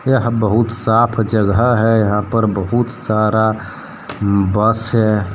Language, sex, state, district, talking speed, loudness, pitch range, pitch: Hindi, male, Jharkhand, Deoghar, 125 wpm, -15 LUFS, 105-115 Hz, 110 Hz